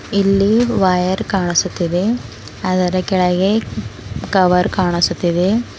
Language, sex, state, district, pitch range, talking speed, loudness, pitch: Kannada, female, Karnataka, Bidar, 175-195 Hz, 75 wpm, -16 LUFS, 185 Hz